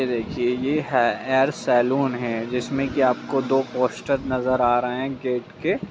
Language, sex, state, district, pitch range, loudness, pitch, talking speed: Hindi, male, Bihar, Purnia, 125-135 Hz, -23 LUFS, 130 Hz, 185 wpm